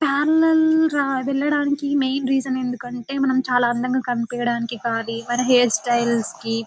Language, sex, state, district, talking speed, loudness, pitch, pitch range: Telugu, female, Telangana, Karimnagar, 145 wpm, -20 LUFS, 255 Hz, 240-280 Hz